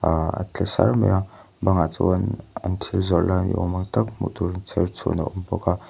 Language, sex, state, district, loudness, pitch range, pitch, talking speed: Mizo, male, Mizoram, Aizawl, -23 LUFS, 90-105 Hz, 95 Hz, 245 wpm